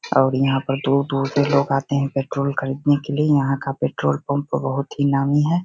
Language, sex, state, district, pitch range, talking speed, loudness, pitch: Hindi, male, Bihar, Begusarai, 135-140 Hz, 225 wpm, -20 LUFS, 140 Hz